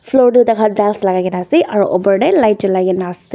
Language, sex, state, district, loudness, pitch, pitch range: Nagamese, female, Nagaland, Dimapur, -13 LUFS, 205 Hz, 185-235 Hz